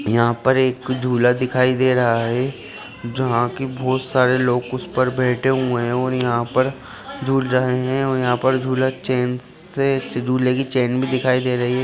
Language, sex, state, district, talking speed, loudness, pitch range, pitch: Hindi, male, Bihar, Jahanabad, 200 wpm, -19 LUFS, 125-130 Hz, 130 Hz